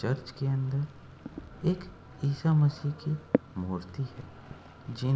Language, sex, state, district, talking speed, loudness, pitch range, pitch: Hindi, male, Uttar Pradesh, Etah, 130 wpm, -31 LUFS, 125-145 Hz, 135 Hz